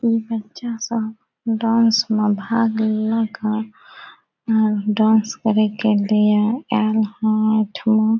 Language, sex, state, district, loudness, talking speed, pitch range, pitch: Maithili, female, Bihar, Saharsa, -19 LUFS, 115 wpm, 215-225 Hz, 220 Hz